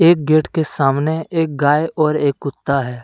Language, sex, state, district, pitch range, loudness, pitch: Hindi, male, Jharkhand, Deoghar, 140-160 Hz, -17 LUFS, 150 Hz